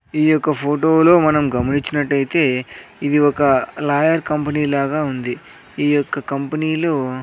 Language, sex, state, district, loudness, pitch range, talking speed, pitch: Telugu, male, Andhra Pradesh, Sri Satya Sai, -17 LUFS, 140-155 Hz, 135 wpm, 145 Hz